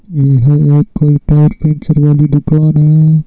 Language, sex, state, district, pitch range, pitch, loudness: Hindi, male, Rajasthan, Bikaner, 145-155 Hz, 150 Hz, -9 LUFS